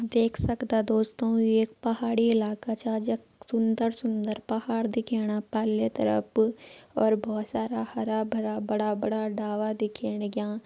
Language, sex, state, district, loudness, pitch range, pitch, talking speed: Garhwali, female, Uttarakhand, Uttarkashi, -28 LUFS, 215-230 Hz, 220 Hz, 135 wpm